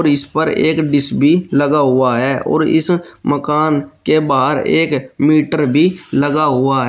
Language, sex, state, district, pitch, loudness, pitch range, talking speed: Hindi, male, Uttar Pradesh, Shamli, 150 Hz, -14 LUFS, 140-155 Hz, 165 wpm